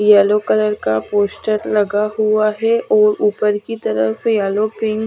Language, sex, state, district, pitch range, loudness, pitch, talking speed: Hindi, female, Chhattisgarh, Raipur, 205-220 Hz, -16 LUFS, 215 Hz, 165 wpm